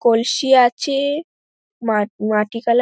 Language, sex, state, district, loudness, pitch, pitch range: Bengali, female, West Bengal, Dakshin Dinajpur, -18 LUFS, 240 Hz, 225-275 Hz